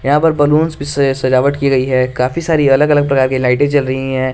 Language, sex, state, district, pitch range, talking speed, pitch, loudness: Hindi, male, Jharkhand, Garhwa, 130-145 Hz, 250 wpm, 140 Hz, -13 LUFS